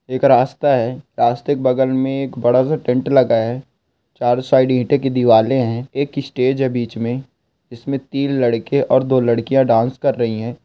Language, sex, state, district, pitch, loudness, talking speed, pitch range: Hindi, male, Goa, North and South Goa, 130 Hz, -17 LUFS, 170 wpm, 120-135 Hz